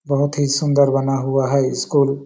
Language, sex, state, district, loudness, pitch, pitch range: Hindi, male, Chhattisgarh, Balrampur, -18 LUFS, 140 Hz, 135-145 Hz